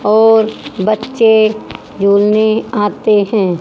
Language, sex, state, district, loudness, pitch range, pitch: Hindi, female, Haryana, Jhajjar, -12 LUFS, 205-220 Hz, 215 Hz